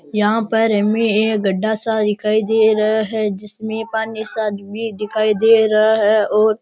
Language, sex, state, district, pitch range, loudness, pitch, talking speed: Rajasthani, male, Rajasthan, Churu, 210-220 Hz, -17 LUFS, 215 Hz, 180 wpm